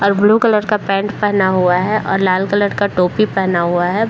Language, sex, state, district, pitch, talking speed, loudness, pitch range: Hindi, male, Bihar, Jahanabad, 200 Hz, 250 wpm, -15 LUFS, 185-210 Hz